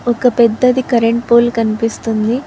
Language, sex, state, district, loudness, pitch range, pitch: Telugu, female, Telangana, Hyderabad, -13 LUFS, 230-245 Hz, 235 Hz